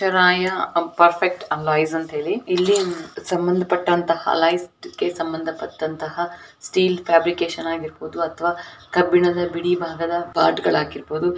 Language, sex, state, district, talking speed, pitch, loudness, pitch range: Kannada, female, Karnataka, Shimoga, 85 wpm, 170 Hz, -21 LUFS, 165-180 Hz